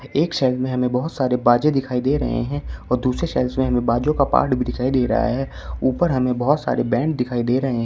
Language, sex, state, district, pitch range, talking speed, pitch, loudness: Hindi, male, Uttar Pradesh, Shamli, 125-140 Hz, 235 wpm, 130 Hz, -20 LUFS